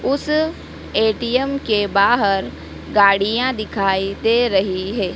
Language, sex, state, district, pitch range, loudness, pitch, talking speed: Hindi, female, Madhya Pradesh, Dhar, 195-245 Hz, -18 LUFS, 215 Hz, 105 wpm